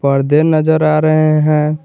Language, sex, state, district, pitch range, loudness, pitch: Hindi, male, Jharkhand, Garhwa, 150-155 Hz, -12 LUFS, 155 Hz